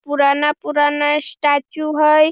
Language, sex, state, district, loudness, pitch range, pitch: Hindi, female, Bihar, Darbhanga, -16 LUFS, 290-305 Hz, 295 Hz